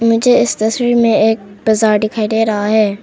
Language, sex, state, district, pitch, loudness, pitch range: Hindi, female, Arunachal Pradesh, Papum Pare, 220 Hz, -13 LUFS, 210-225 Hz